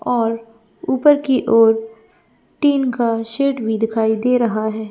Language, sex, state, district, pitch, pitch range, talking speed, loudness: Hindi, female, Chhattisgarh, Bilaspur, 230 Hz, 225-255 Hz, 145 wpm, -17 LUFS